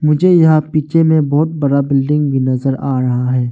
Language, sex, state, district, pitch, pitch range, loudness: Hindi, male, Arunachal Pradesh, Longding, 145 Hz, 135-155 Hz, -13 LUFS